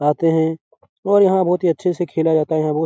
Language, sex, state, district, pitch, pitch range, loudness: Hindi, male, Bihar, Araria, 165 Hz, 160-180 Hz, -17 LUFS